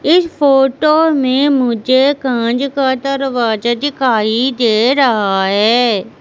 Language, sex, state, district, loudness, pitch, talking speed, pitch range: Hindi, female, Madhya Pradesh, Katni, -13 LUFS, 260 Hz, 105 wpm, 230-275 Hz